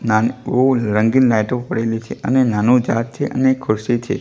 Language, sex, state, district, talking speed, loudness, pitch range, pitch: Gujarati, male, Gujarat, Gandhinagar, 170 wpm, -17 LUFS, 110-130 Hz, 120 Hz